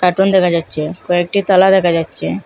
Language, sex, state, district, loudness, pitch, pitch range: Bengali, female, Assam, Hailakandi, -14 LUFS, 175 Hz, 165-190 Hz